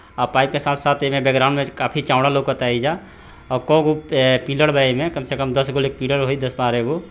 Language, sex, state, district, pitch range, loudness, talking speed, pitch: Hindi, male, Bihar, Gopalganj, 130-145 Hz, -19 LUFS, 195 wpm, 135 Hz